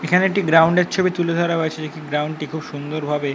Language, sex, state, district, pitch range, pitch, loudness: Bengali, male, West Bengal, North 24 Parganas, 150-175 Hz, 160 Hz, -20 LUFS